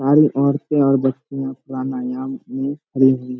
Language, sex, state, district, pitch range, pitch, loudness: Hindi, male, Bihar, Samastipur, 130-150 Hz, 135 Hz, -19 LUFS